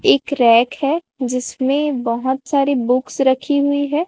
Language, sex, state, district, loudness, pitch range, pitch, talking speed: Hindi, female, Chhattisgarh, Raipur, -17 LUFS, 255-285 Hz, 270 Hz, 145 wpm